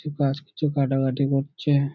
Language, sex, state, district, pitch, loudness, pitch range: Bengali, male, West Bengal, Kolkata, 140 Hz, -24 LUFS, 140-150 Hz